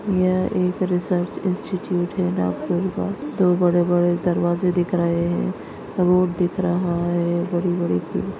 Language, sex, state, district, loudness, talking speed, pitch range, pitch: Hindi, female, Maharashtra, Nagpur, -21 LUFS, 130 wpm, 175-185 Hz, 175 Hz